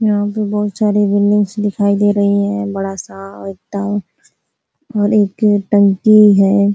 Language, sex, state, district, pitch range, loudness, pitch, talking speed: Hindi, female, Uttar Pradesh, Ghazipur, 200-210 Hz, -14 LUFS, 205 Hz, 150 wpm